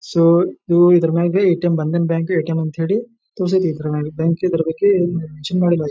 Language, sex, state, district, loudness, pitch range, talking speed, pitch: Kannada, male, Karnataka, Dharwad, -17 LUFS, 165-180 Hz, 140 wpm, 170 Hz